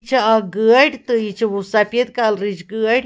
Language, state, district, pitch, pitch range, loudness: Kashmiri, Punjab, Kapurthala, 225 Hz, 210-245 Hz, -17 LUFS